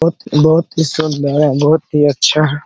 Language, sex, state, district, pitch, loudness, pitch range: Hindi, male, Jharkhand, Sahebganj, 155 Hz, -13 LUFS, 145-160 Hz